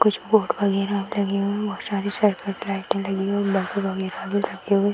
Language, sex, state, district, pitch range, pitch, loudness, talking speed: Hindi, female, Bihar, Saran, 195-205 Hz, 200 Hz, -24 LUFS, 180 wpm